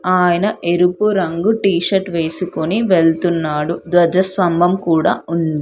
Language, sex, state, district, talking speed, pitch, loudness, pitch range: Telugu, female, Telangana, Hyderabad, 95 wpm, 175 Hz, -16 LUFS, 170-190 Hz